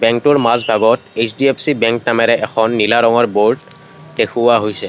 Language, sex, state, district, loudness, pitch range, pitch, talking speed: Assamese, male, Assam, Kamrup Metropolitan, -13 LUFS, 110-120 Hz, 115 Hz, 135 wpm